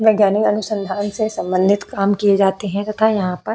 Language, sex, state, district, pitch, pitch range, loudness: Hindi, female, Uttar Pradesh, Jalaun, 205 Hz, 195-215 Hz, -18 LUFS